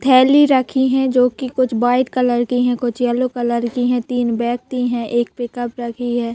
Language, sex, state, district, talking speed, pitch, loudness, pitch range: Hindi, female, Bihar, Jahanabad, 200 wpm, 245 Hz, -17 LUFS, 240-255 Hz